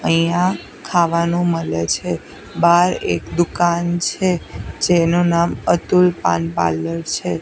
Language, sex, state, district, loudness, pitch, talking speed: Gujarati, female, Gujarat, Gandhinagar, -18 LUFS, 170 Hz, 115 wpm